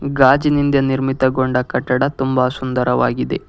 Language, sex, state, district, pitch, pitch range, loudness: Kannada, male, Karnataka, Bangalore, 130 Hz, 125-135 Hz, -17 LUFS